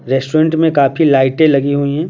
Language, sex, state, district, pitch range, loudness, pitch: Hindi, male, Bihar, Patna, 140-160 Hz, -13 LUFS, 145 Hz